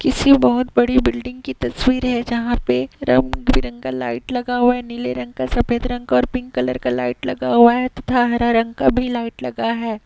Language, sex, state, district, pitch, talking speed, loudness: Hindi, female, Chhattisgarh, Raigarh, 215 Hz, 215 wpm, -18 LUFS